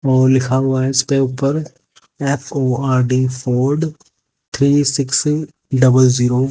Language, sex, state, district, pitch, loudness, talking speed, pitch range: Hindi, male, Haryana, Jhajjar, 130 Hz, -16 LUFS, 120 wpm, 130-140 Hz